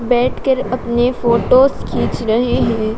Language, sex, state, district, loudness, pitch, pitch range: Hindi, female, Madhya Pradesh, Dhar, -15 LUFS, 245 Hz, 230-255 Hz